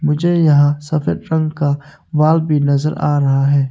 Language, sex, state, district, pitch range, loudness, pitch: Hindi, male, Arunachal Pradesh, Longding, 145-155 Hz, -15 LUFS, 150 Hz